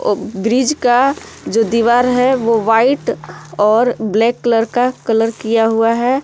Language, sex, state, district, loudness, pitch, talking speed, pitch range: Hindi, female, Jharkhand, Palamu, -14 LUFS, 230 Hz, 155 wpm, 225-250 Hz